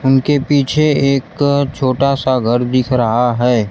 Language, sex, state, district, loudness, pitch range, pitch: Hindi, male, Bihar, Kaimur, -14 LUFS, 125-140 Hz, 135 Hz